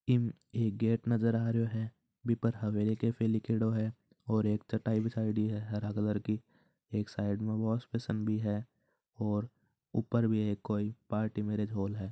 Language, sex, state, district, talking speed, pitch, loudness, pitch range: Marwari, male, Rajasthan, Churu, 175 wpm, 110 Hz, -34 LUFS, 105-115 Hz